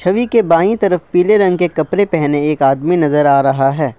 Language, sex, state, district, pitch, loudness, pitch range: Hindi, male, Assam, Kamrup Metropolitan, 170 Hz, -13 LUFS, 145-190 Hz